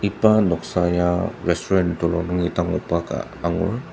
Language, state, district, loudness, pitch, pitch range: Ao, Nagaland, Dimapur, -21 LUFS, 90 Hz, 85-95 Hz